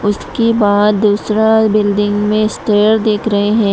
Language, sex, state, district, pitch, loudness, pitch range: Hindi, female, Tripura, West Tripura, 210 Hz, -13 LUFS, 205-220 Hz